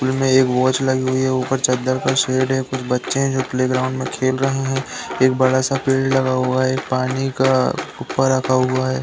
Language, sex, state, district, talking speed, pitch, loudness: Hindi, male, Uttar Pradesh, Deoria, 235 wpm, 130 Hz, -18 LUFS